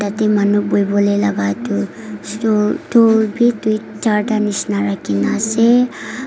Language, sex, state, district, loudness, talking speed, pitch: Nagamese, female, Nagaland, Kohima, -16 LUFS, 125 wpm, 210 Hz